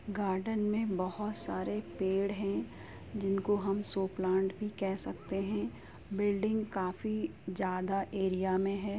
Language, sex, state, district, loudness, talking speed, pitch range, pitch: Hindi, female, Uttar Pradesh, Jyotiba Phule Nagar, -34 LUFS, 135 wpm, 185-205 Hz, 195 Hz